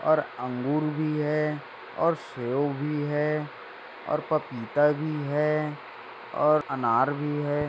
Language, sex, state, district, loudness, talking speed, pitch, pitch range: Hindi, male, Maharashtra, Sindhudurg, -27 LUFS, 125 wpm, 150 Hz, 140-150 Hz